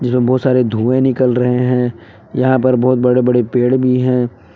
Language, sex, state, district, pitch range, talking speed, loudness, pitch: Hindi, male, Jharkhand, Palamu, 125-130 Hz, 185 wpm, -14 LUFS, 125 Hz